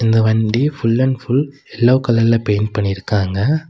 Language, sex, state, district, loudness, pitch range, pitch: Tamil, male, Tamil Nadu, Nilgiris, -16 LUFS, 110-130 Hz, 115 Hz